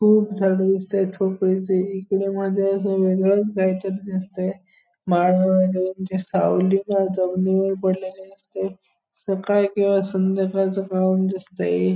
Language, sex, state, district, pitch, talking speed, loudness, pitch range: Marathi, male, Goa, North and South Goa, 190 Hz, 100 wpm, -21 LUFS, 185-195 Hz